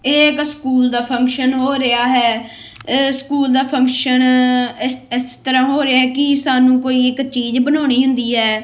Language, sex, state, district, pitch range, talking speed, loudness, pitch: Punjabi, female, Punjab, Kapurthala, 250-270 Hz, 165 wpm, -15 LUFS, 255 Hz